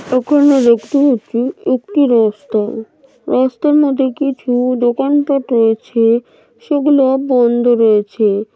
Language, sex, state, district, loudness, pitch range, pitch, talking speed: Bengali, female, West Bengal, Malda, -14 LUFS, 230-280 Hz, 255 Hz, 100 wpm